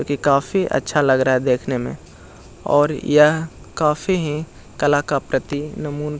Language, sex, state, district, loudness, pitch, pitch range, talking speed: Hindi, male, Bihar, Jahanabad, -19 LUFS, 145 Hz, 130-150 Hz, 165 wpm